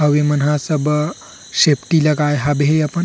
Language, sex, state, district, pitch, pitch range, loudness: Chhattisgarhi, male, Chhattisgarh, Rajnandgaon, 150 Hz, 145-155 Hz, -16 LUFS